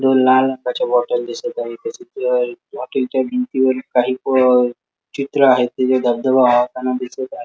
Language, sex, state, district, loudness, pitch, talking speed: Marathi, male, Maharashtra, Sindhudurg, -17 LUFS, 130 Hz, 160 wpm